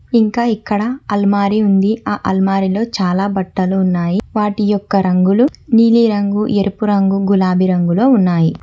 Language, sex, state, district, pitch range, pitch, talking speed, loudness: Telugu, female, Telangana, Hyderabad, 190-215 Hz, 200 Hz, 125 wpm, -14 LUFS